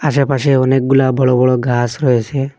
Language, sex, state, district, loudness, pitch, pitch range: Bengali, male, Assam, Hailakandi, -14 LUFS, 130 Hz, 125-135 Hz